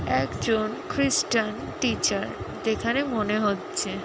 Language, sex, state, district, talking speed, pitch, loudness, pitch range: Bengali, female, West Bengal, Kolkata, 90 wpm, 225 Hz, -26 LUFS, 215-280 Hz